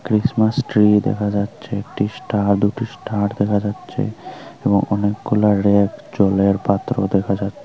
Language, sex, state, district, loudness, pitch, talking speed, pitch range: Bengali, female, Tripura, Unakoti, -19 LUFS, 100 Hz, 135 wpm, 100-105 Hz